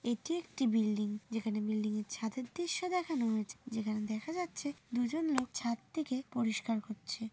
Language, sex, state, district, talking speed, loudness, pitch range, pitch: Bengali, female, West Bengal, Jhargram, 145 wpm, -36 LUFS, 215-285 Hz, 235 Hz